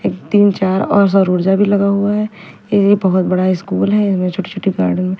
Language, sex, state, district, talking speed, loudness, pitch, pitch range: Hindi, female, Punjab, Fazilka, 220 wpm, -14 LUFS, 195 Hz, 185-205 Hz